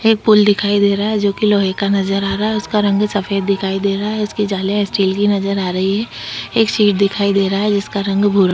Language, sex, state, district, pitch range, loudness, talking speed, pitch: Hindi, female, Chhattisgarh, Sukma, 195-210 Hz, -16 LUFS, 260 wpm, 200 Hz